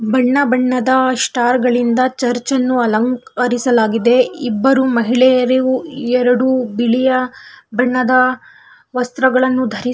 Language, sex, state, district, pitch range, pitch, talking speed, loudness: Kannada, female, Karnataka, Belgaum, 245-260 Hz, 255 Hz, 85 wpm, -15 LUFS